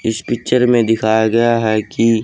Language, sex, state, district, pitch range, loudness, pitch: Hindi, male, Haryana, Charkhi Dadri, 110-120 Hz, -15 LUFS, 115 Hz